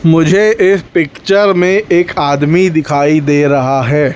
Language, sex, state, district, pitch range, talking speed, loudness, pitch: Hindi, male, Chhattisgarh, Raipur, 145-185 Hz, 145 wpm, -10 LUFS, 160 Hz